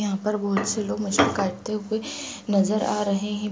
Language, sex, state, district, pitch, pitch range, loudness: Hindi, female, Uttar Pradesh, Jalaun, 210 Hz, 200-215 Hz, -25 LUFS